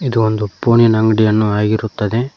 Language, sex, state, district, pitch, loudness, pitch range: Kannada, male, Karnataka, Koppal, 110 Hz, -14 LUFS, 105-115 Hz